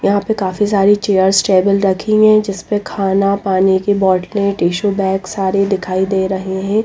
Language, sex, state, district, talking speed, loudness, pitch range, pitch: Hindi, female, Bihar, Patna, 185 wpm, -14 LUFS, 190-200 Hz, 195 Hz